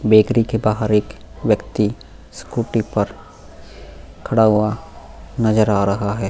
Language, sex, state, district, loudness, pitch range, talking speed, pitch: Hindi, male, Goa, North and South Goa, -18 LUFS, 85-110 Hz, 125 wpm, 105 Hz